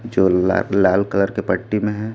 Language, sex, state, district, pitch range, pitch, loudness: Hindi, male, Chhattisgarh, Raipur, 95-105 Hz, 100 Hz, -18 LUFS